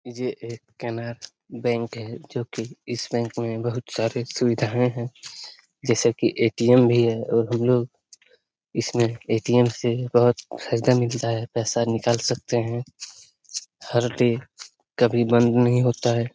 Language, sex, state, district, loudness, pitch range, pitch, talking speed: Hindi, male, Bihar, Lakhisarai, -23 LUFS, 115-120 Hz, 120 Hz, 145 wpm